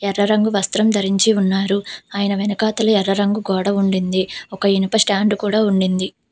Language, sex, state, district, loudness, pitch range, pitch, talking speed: Telugu, female, Telangana, Hyderabad, -18 LUFS, 195-210 Hz, 200 Hz, 150 wpm